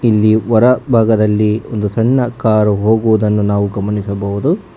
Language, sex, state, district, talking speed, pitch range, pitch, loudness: Kannada, male, Karnataka, Bangalore, 115 wpm, 105-115 Hz, 110 Hz, -14 LUFS